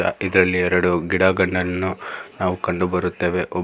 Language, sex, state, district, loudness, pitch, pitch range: Kannada, male, Karnataka, Bangalore, -20 LUFS, 90 Hz, 90-95 Hz